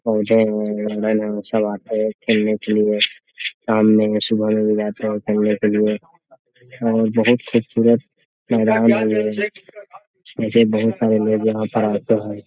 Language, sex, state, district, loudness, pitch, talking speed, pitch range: Hindi, male, Bihar, Gaya, -18 LUFS, 110 Hz, 155 wpm, 105-115 Hz